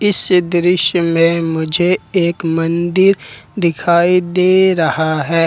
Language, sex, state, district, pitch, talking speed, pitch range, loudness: Hindi, male, Jharkhand, Ranchi, 170 Hz, 110 wpm, 165-180 Hz, -14 LUFS